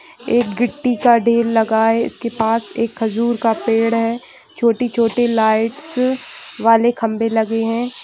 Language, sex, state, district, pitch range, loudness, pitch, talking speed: Hindi, female, Bihar, Kishanganj, 225-240 Hz, -17 LUFS, 230 Hz, 140 wpm